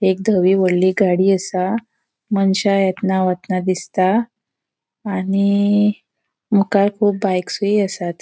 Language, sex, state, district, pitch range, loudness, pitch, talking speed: Konkani, female, Goa, North and South Goa, 185-205 Hz, -17 LUFS, 195 Hz, 100 wpm